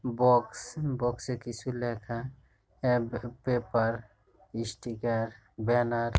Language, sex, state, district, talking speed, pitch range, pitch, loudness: Bengali, male, West Bengal, Jhargram, 85 wpm, 115-125 Hz, 120 Hz, -31 LUFS